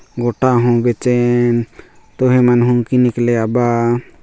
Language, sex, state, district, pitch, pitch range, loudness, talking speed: Chhattisgarhi, male, Chhattisgarh, Jashpur, 120 Hz, 120-125 Hz, -14 LUFS, 115 wpm